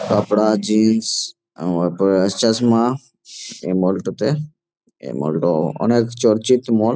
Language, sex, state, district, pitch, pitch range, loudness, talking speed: Bengali, male, West Bengal, Jalpaiguri, 110 Hz, 100-120 Hz, -18 LUFS, 105 wpm